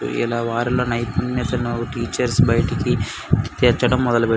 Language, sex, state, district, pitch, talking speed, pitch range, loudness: Telugu, male, Andhra Pradesh, Anantapur, 120 Hz, 125 wpm, 115-125 Hz, -20 LUFS